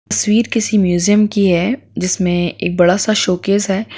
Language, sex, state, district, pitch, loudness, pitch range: Hindi, female, Bihar, Gopalganj, 200 Hz, -15 LUFS, 180-215 Hz